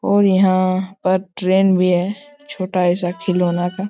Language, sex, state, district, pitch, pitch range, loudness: Hindi, male, Jharkhand, Jamtara, 185 Hz, 180-195 Hz, -17 LUFS